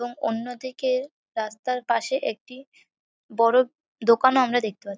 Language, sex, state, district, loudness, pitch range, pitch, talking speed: Bengali, female, West Bengal, North 24 Parganas, -24 LUFS, 230-260 Hz, 250 Hz, 120 wpm